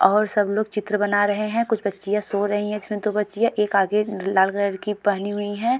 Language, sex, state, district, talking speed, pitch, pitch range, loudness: Hindi, female, Uttarakhand, Tehri Garhwal, 240 wpm, 210 Hz, 200-210 Hz, -22 LUFS